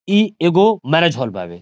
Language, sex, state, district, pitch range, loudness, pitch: Bhojpuri, male, Bihar, Saran, 130-200 Hz, -16 LUFS, 170 Hz